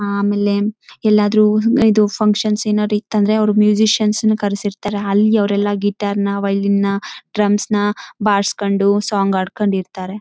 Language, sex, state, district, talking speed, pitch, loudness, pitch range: Kannada, female, Karnataka, Raichur, 105 wpm, 205 Hz, -16 LUFS, 200-210 Hz